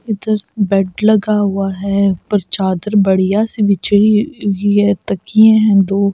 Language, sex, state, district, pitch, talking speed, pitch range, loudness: Hindi, female, Delhi, New Delhi, 205 Hz, 145 wpm, 195-215 Hz, -14 LUFS